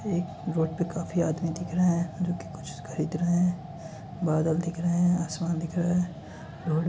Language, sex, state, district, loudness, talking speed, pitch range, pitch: Hindi, male, Uttar Pradesh, Varanasi, -28 LUFS, 200 wpm, 160-175 Hz, 170 Hz